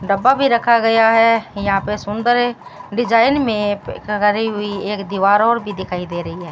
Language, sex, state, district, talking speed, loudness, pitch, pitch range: Hindi, female, Rajasthan, Bikaner, 165 wpm, -16 LUFS, 210 Hz, 200-230 Hz